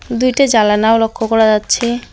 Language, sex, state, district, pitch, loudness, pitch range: Bengali, female, West Bengal, Alipurduar, 225 Hz, -13 LUFS, 220-240 Hz